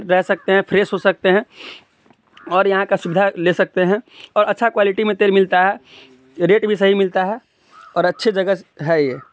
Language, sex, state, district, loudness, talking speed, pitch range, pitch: Hindi, male, Bihar, East Champaran, -17 LUFS, 200 wpm, 185-205 Hz, 195 Hz